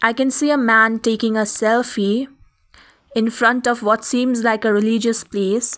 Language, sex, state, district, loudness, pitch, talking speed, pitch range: English, female, Sikkim, Gangtok, -17 LUFS, 230 Hz, 165 wpm, 220-245 Hz